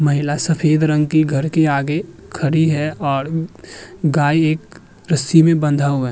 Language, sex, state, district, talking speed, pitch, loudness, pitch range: Hindi, male, Uttar Pradesh, Muzaffarnagar, 165 wpm, 155 Hz, -17 LUFS, 145-160 Hz